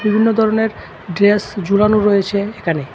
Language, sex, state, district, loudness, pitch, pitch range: Bengali, male, Tripura, West Tripura, -15 LUFS, 205 Hz, 195-215 Hz